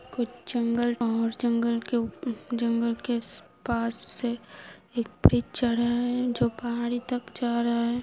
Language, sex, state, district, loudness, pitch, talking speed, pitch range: Hindi, female, Uttar Pradesh, Hamirpur, -28 LUFS, 235 Hz, 155 wpm, 235-240 Hz